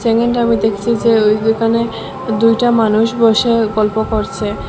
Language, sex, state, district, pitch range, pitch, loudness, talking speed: Bengali, female, Assam, Hailakandi, 215-230 Hz, 225 Hz, -14 LUFS, 140 wpm